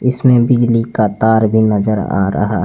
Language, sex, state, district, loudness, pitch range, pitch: Hindi, male, Jharkhand, Deoghar, -13 LUFS, 105-120 Hz, 110 Hz